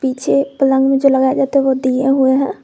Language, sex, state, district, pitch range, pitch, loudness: Hindi, female, Jharkhand, Garhwa, 265-275 Hz, 270 Hz, -14 LUFS